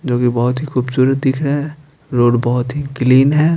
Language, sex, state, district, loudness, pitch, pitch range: Hindi, male, Bihar, Patna, -15 LUFS, 130 Hz, 125-145 Hz